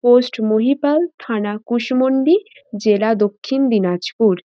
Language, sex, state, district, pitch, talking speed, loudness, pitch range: Bengali, female, West Bengal, North 24 Parganas, 225 Hz, 95 wpm, -17 LUFS, 210-265 Hz